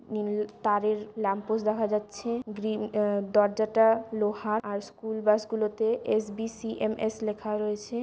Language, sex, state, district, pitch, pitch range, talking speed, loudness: Bengali, female, West Bengal, Jalpaiguri, 215 Hz, 210-220 Hz, 120 wpm, -28 LUFS